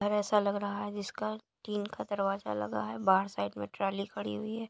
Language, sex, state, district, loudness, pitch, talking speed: Hindi, male, Uttar Pradesh, Jalaun, -33 LUFS, 200 Hz, 230 wpm